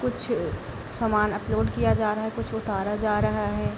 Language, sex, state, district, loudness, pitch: Hindi, female, Bihar, East Champaran, -26 LUFS, 200 Hz